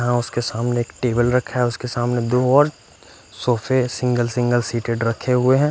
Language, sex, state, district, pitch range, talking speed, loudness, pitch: Hindi, male, Punjab, Fazilka, 120-125 Hz, 190 wpm, -20 LUFS, 120 Hz